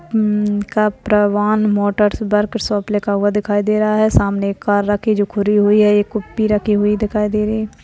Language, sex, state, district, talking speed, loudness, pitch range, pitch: Hindi, male, Uttarakhand, Uttarkashi, 200 wpm, -16 LUFS, 205-215 Hz, 210 Hz